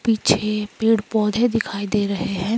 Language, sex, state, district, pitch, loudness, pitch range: Hindi, female, Himachal Pradesh, Shimla, 215 Hz, -20 LUFS, 200-225 Hz